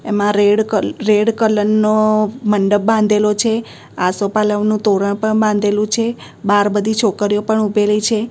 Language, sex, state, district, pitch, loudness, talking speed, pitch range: Gujarati, female, Gujarat, Gandhinagar, 210 Hz, -15 LUFS, 145 wpm, 205-220 Hz